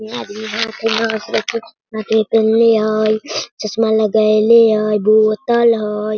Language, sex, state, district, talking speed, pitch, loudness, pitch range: Hindi, female, Bihar, Sitamarhi, 70 wpm, 220 Hz, -15 LUFS, 215-225 Hz